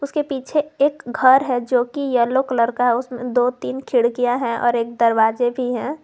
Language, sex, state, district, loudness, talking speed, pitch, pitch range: Hindi, female, Jharkhand, Garhwa, -19 LUFS, 210 wpm, 245 Hz, 240-265 Hz